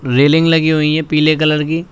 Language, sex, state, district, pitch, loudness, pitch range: Hindi, male, Uttar Pradesh, Shamli, 155 Hz, -13 LUFS, 150-160 Hz